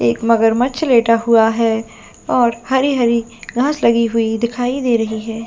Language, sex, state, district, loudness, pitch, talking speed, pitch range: Hindi, female, Jharkhand, Jamtara, -16 LUFS, 230 Hz, 165 wpm, 225-245 Hz